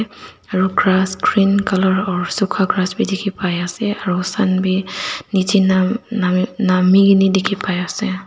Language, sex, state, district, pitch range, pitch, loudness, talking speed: Nagamese, female, Nagaland, Dimapur, 185-200 Hz, 190 Hz, -17 LUFS, 140 wpm